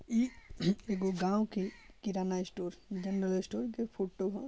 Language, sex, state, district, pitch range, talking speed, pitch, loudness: Bhojpuri, male, Bihar, Gopalganj, 190-220 Hz, 145 wpm, 195 Hz, -36 LUFS